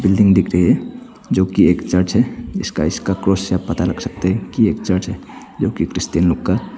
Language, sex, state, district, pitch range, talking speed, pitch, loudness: Hindi, male, Arunachal Pradesh, Papum Pare, 95-100 Hz, 245 wpm, 95 Hz, -17 LUFS